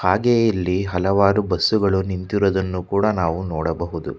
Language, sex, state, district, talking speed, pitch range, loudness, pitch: Kannada, male, Karnataka, Bangalore, 115 wpm, 90-100 Hz, -20 LUFS, 95 Hz